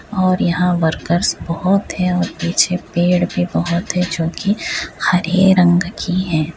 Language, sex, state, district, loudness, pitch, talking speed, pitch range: Hindi, female, Bihar, Saharsa, -17 LUFS, 180 Hz, 145 wpm, 170-185 Hz